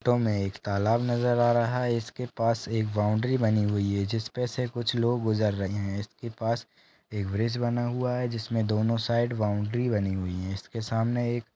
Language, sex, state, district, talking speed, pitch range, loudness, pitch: Hindi, male, Maharashtra, Solapur, 220 wpm, 105-120 Hz, -28 LUFS, 115 Hz